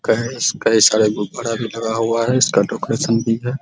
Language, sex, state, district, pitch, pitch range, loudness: Hindi, male, Bihar, Araria, 115 Hz, 110-120 Hz, -17 LUFS